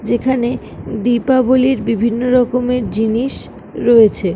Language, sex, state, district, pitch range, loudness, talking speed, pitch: Bengali, female, West Bengal, Kolkata, 225-250 Hz, -15 LUFS, 95 wpm, 240 Hz